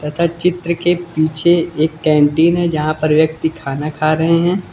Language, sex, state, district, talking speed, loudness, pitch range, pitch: Hindi, male, Uttar Pradesh, Lucknow, 180 wpm, -15 LUFS, 155-170 Hz, 160 Hz